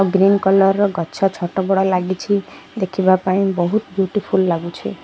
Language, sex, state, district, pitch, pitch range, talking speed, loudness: Odia, female, Odisha, Malkangiri, 190 Hz, 185-195 Hz, 145 wpm, -17 LUFS